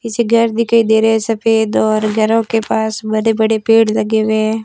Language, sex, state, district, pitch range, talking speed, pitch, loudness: Hindi, female, Rajasthan, Barmer, 215-225 Hz, 205 wpm, 220 Hz, -14 LUFS